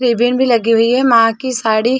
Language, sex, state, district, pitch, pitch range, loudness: Hindi, female, Chhattisgarh, Bilaspur, 240 Hz, 225-250 Hz, -13 LUFS